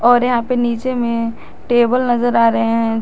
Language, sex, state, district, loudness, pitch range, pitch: Hindi, female, Jharkhand, Garhwa, -16 LUFS, 230-245 Hz, 240 Hz